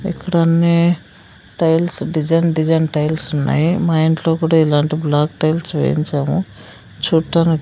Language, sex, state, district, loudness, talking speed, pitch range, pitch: Telugu, female, Andhra Pradesh, Sri Satya Sai, -16 LUFS, 110 wpm, 150-165 Hz, 160 Hz